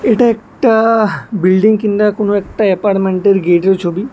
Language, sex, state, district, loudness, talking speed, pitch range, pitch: Bengali, male, Tripura, West Tripura, -12 LUFS, 130 wpm, 190-220 Hz, 205 Hz